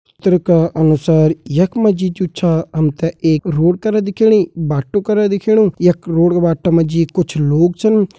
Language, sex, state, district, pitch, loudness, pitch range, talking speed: Hindi, male, Uttarakhand, Uttarkashi, 175 Hz, -14 LUFS, 160-200 Hz, 190 wpm